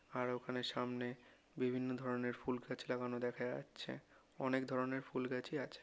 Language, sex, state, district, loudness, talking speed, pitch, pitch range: Bengali, male, West Bengal, North 24 Parganas, -42 LUFS, 155 wpm, 125 Hz, 125-130 Hz